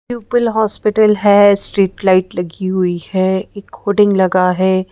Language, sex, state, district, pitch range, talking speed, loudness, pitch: Hindi, female, Madhya Pradesh, Bhopal, 185-210 Hz, 145 wpm, -14 LUFS, 195 Hz